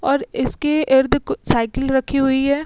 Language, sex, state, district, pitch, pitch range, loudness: Hindi, female, Uttar Pradesh, Muzaffarnagar, 270 Hz, 265-285 Hz, -18 LUFS